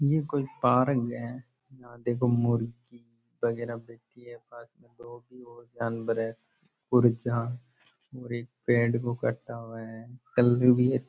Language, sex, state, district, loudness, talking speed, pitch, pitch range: Rajasthani, male, Rajasthan, Churu, -28 LUFS, 150 wpm, 120 Hz, 115-125 Hz